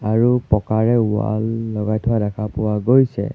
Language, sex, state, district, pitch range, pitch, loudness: Assamese, male, Assam, Sonitpur, 105-115 Hz, 110 Hz, -18 LUFS